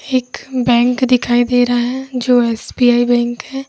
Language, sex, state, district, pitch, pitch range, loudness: Hindi, female, Uttar Pradesh, Lalitpur, 245 Hz, 240-255 Hz, -15 LUFS